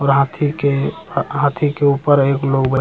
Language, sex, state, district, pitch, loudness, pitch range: Hindi, male, Bihar, Jamui, 140 Hz, -17 LUFS, 135-145 Hz